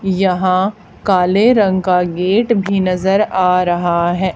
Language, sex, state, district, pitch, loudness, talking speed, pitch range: Hindi, female, Haryana, Charkhi Dadri, 185 Hz, -14 LUFS, 140 wpm, 180-195 Hz